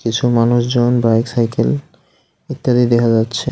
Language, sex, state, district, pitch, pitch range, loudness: Bengali, male, West Bengal, Alipurduar, 120 Hz, 115-130 Hz, -15 LUFS